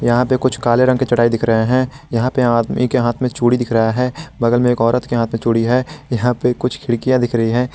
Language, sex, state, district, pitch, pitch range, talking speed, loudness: Hindi, male, Jharkhand, Garhwa, 120 Hz, 115-125 Hz, 280 wpm, -16 LUFS